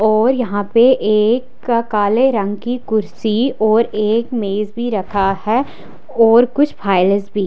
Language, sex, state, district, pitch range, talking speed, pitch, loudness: Hindi, female, Haryana, Charkhi Dadri, 205-240 Hz, 155 wpm, 220 Hz, -15 LUFS